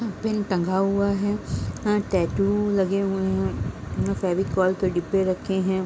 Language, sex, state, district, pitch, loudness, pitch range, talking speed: Hindi, female, Bihar, Gopalganj, 190 Hz, -24 LUFS, 180-200 Hz, 195 wpm